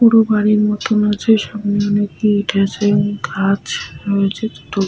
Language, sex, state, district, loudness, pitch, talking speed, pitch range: Bengali, female, Jharkhand, Sahebganj, -16 LUFS, 205 Hz, 125 wpm, 200-215 Hz